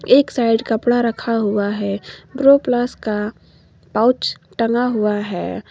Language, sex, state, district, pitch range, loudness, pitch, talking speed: Hindi, female, Jharkhand, Garhwa, 205-245 Hz, -18 LUFS, 230 Hz, 125 wpm